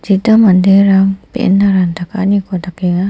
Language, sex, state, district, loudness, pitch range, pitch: Garo, female, Meghalaya, West Garo Hills, -11 LUFS, 180-200 Hz, 195 Hz